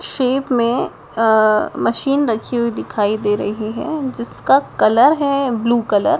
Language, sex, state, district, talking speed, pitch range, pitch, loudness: Hindi, female, Madhya Pradesh, Dhar, 155 wpm, 215-270 Hz, 235 Hz, -17 LUFS